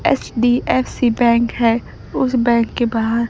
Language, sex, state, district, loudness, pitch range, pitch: Hindi, female, Bihar, Kaimur, -17 LUFS, 235-245 Hz, 235 Hz